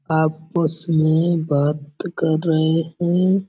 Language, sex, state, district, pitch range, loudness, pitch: Hindi, male, Uttar Pradesh, Budaun, 155-170 Hz, -20 LUFS, 160 Hz